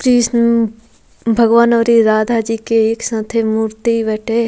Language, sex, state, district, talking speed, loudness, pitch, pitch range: Bhojpuri, female, Bihar, Muzaffarpur, 145 wpm, -14 LUFS, 230 Hz, 220-235 Hz